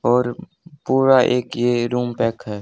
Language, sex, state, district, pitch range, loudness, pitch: Hindi, male, Haryana, Charkhi Dadri, 120-135 Hz, -19 LUFS, 125 Hz